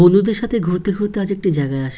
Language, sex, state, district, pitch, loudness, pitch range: Bengali, female, West Bengal, North 24 Parganas, 195 Hz, -18 LUFS, 175-205 Hz